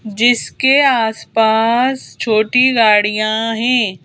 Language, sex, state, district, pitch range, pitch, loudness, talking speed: Hindi, female, Madhya Pradesh, Bhopal, 220-250 Hz, 225 Hz, -14 LUFS, 75 wpm